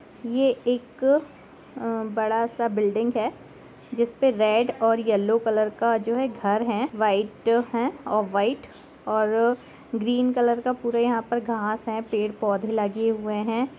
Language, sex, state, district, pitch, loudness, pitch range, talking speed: Hindi, female, Jharkhand, Jamtara, 230 Hz, -24 LUFS, 215-240 Hz, 115 wpm